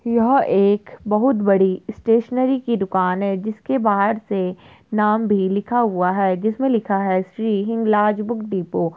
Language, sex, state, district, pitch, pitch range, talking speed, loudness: Hindi, female, Uttar Pradesh, Etah, 210 Hz, 195-230 Hz, 160 wpm, -19 LUFS